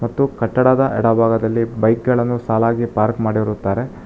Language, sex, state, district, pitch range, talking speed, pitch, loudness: Kannada, male, Karnataka, Bangalore, 110-120 Hz, 135 wpm, 115 Hz, -17 LUFS